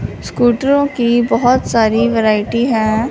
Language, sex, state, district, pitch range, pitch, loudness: Hindi, female, Punjab, Fazilka, 225-245 Hz, 235 Hz, -14 LUFS